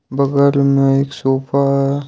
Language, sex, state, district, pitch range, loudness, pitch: Hindi, male, Jharkhand, Ranchi, 135-140 Hz, -15 LUFS, 140 Hz